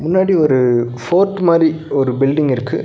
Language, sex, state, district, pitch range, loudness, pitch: Tamil, male, Tamil Nadu, Nilgiris, 130-170 Hz, -15 LUFS, 155 Hz